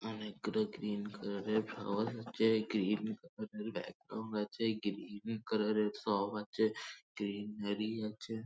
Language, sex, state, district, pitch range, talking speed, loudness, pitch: Bengali, male, West Bengal, Jhargram, 105-110 Hz, 155 wpm, -38 LUFS, 105 Hz